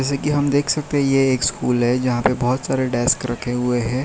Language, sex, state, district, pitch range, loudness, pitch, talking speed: Hindi, male, Gujarat, Valsad, 125-140 Hz, -19 LUFS, 130 Hz, 265 wpm